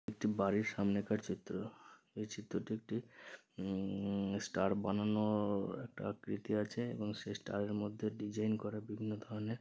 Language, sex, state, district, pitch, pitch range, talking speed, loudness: Bengali, male, West Bengal, Paschim Medinipur, 105 Hz, 100-105 Hz, 135 wpm, -39 LUFS